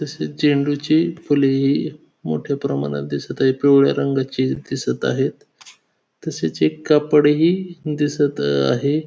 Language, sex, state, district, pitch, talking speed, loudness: Marathi, male, Maharashtra, Pune, 140 Hz, 110 wpm, -19 LUFS